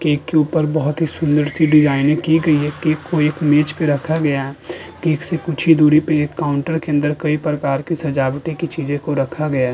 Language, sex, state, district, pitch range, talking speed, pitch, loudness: Hindi, male, Uttar Pradesh, Budaun, 145-160 Hz, 210 wpm, 150 Hz, -17 LUFS